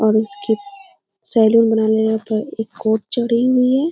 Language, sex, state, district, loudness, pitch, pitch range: Hindi, female, Bihar, Gopalganj, -17 LUFS, 225 Hz, 220-255 Hz